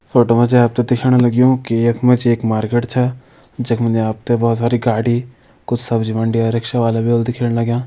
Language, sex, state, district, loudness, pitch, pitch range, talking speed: Hindi, male, Uttarakhand, Uttarkashi, -16 LUFS, 120 Hz, 115-125 Hz, 235 wpm